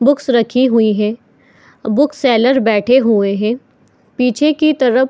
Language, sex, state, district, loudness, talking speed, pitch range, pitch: Hindi, female, Jharkhand, Jamtara, -14 LUFS, 140 wpm, 220-265 Hz, 250 Hz